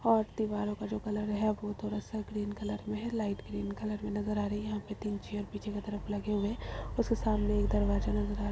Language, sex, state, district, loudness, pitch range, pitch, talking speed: Hindi, female, Uttar Pradesh, Budaun, -34 LUFS, 205-215 Hz, 210 Hz, 280 wpm